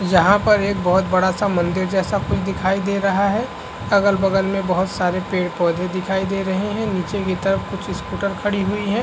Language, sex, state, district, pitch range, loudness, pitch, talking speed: Hindi, male, Uttar Pradesh, Varanasi, 185-200 Hz, -19 LUFS, 195 Hz, 200 wpm